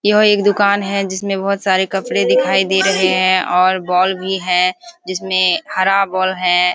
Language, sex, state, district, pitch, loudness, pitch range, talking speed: Hindi, female, Bihar, Kishanganj, 190 Hz, -15 LUFS, 185-195 Hz, 180 wpm